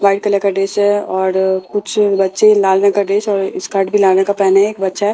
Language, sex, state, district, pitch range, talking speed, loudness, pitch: Hindi, female, Bihar, Katihar, 195-205 Hz, 270 wpm, -14 LUFS, 200 Hz